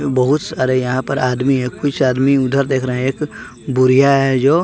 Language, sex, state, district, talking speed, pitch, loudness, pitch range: Hindi, male, Bihar, West Champaran, 205 wpm, 135 Hz, -16 LUFS, 130-140 Hz